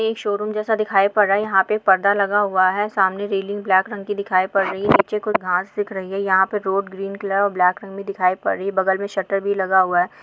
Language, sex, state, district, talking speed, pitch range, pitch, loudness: Bhojpuri, female, Bihar, Saran, 285 wpm, 190-205 Hz, 195 Hz, -19 LUFS